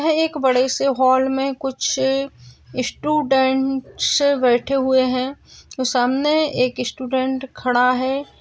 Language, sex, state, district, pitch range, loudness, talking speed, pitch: Hindi, female, Maharashtra, Sindhudurg, 250-275 Hz, -19 LUFS, 115 wpm, 260 Hz